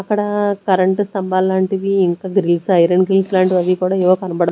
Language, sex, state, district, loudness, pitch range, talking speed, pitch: Telugu, female, Andhra Pradesh, Sri Satya Sai, -16 LUFS, 185-195 Hz, 160 wpm, 185 Hz